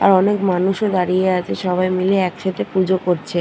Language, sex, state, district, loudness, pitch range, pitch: Bengali, female, West Bengal, Purulia, -18 LUFS, 180-190 Hz, 185 Hz